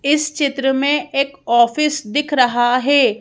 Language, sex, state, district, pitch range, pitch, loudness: Hindi, female, Madhya Pradesh, Bhopal, 250-295 Hz, 275 Hz, -16 LUFS